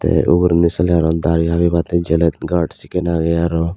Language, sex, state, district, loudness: Chakma, female, Tripura, Unakoti, -16 LUFS